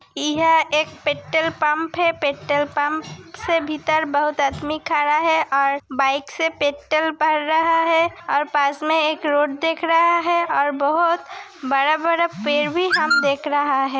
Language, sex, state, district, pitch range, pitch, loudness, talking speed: Hindi, female, Uttar Pradesh, Hamirpur, 290-330 Hz, 310 Hz, -19 LUFS, 155 wpm